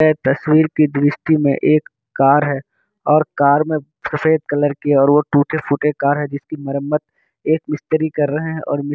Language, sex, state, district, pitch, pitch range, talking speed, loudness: Hindi, male, Bihar, Kishanganj, 150 Hz, 145-155 Hz, 195 wpm, -17 LUFS